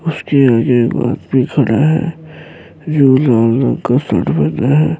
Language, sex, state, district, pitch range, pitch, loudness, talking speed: Urdu, male, Bihar, Saharsa, 125-160 Hz, 140 Hz, -13 LUFS, 155 wpm